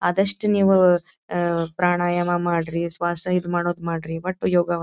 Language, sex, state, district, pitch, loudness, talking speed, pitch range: Kannada, female, Karnataka, Dharwad, 175 Hz, -22 LUFS, 135 wpm, 170-180 Hz